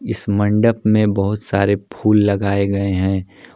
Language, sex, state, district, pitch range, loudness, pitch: Hindi, male, Jharkhand, Palamu, 100-105 Hz, -17 LUFS, 100 Hz